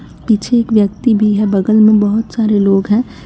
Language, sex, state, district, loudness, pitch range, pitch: Hindi, female, Jharkhand, Garhwa, -12 LUFS, 205-220 Hz, 215 Hz